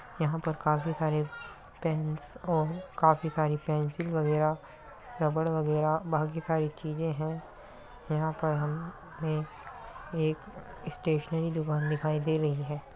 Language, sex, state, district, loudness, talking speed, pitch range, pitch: Hindi, male, Uttar Pradesh, Muzaffarnagar, -31 LUFS, 120 wpm, 155-160 Hz, 155 Hz